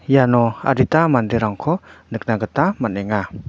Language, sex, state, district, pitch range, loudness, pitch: Garo, male, Meghalaya, North Garo Hills, 105-135 Hz, -18 LUFS, 115 Hz